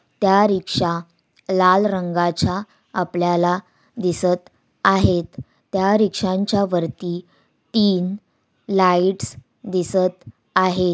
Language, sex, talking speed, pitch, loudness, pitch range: Awadhi, female, 75 wpm, 185 Hz, -20 LUFS, 175-195 Hz